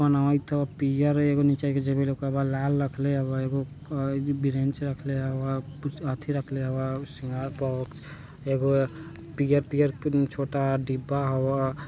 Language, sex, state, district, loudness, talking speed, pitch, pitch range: Bajjika, male, Bihar, Vaishali, -27 LUFS, 145 wpm, 140 Hz, 135-145 Hz